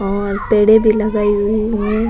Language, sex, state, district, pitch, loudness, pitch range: Rajasthani, female, Rajasthan, Nagaur, 215 Hz, -14 LUFS, 205-220 Hz